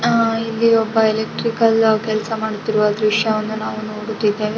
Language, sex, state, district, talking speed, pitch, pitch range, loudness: Kannada, female, Karnataka, Dakshina Kannada, 120 wpm, 220 Hz, 215-225 Hz, -18 LUFS